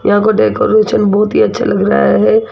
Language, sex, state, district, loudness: Hindi, female, Rajasthan, Jaipur, -11 LUFS